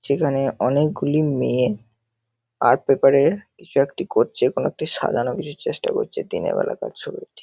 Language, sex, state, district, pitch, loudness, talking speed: Bengali, male, West Bengal, North 24 Parganas, 150 Hz, -21 LUFS, 155 wpm